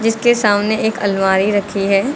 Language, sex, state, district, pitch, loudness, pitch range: Hindi, female, Uttar Pradesh, Lucknow, 205 Hz, -15 LUFS, 195-225 Hz